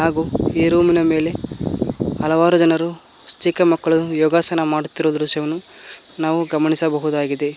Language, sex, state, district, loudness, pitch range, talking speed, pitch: Kannada, male, Karnataka, Koppal, -18 LUFS, 155-165 Hz, 110 wpm, 160 Hz